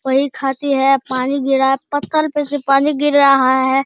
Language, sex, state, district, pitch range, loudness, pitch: Hindi, male, Bihar, Araria, 265-290 Hz, -15 LUFS, 275 Hz